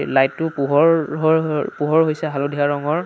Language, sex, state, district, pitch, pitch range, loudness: Assamese, male, Assam, Sonitpur, 150 Hz, 145-160 Hz, -18 LUFS